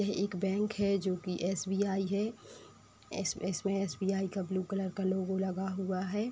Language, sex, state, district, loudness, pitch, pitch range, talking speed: Hindi, female, Uttar Pradesh, Etah, -34 LUFS, 195 Hz, 190-200 Hz, 180 wpm